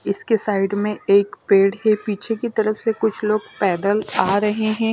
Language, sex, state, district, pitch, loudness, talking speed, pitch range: Hindi, female, Himachal Pradesh, Shimla, 210 Hz, -19 LUFS, 195 wpm, 200-220 Hz